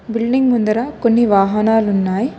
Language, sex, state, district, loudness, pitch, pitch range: Telugu, female, Telangana, Hyderabad, -15 LUFS, 225 Hz, 210-240 Hz